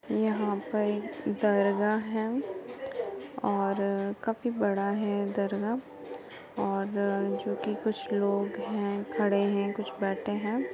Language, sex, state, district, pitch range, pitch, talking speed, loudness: Hindi, female, Uttar Pradesh, Jalaun, 200-220 Hz, 205 Hz, 105 wpm, -30 LUFS